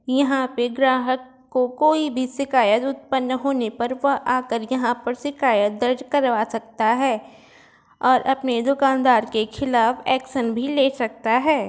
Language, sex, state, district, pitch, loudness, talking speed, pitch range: Hindi, female, Uttar Pradesh, Varanasi, 255 Hz, -21 LUFS, 150 wpm, 235-270 Hz